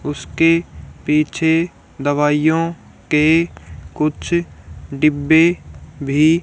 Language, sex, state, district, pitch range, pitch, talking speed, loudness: Hindi, female, Haryana, Charkhi Dadri, 145-165 Hz, 155 Hz, 65 wpm, -17 LUFS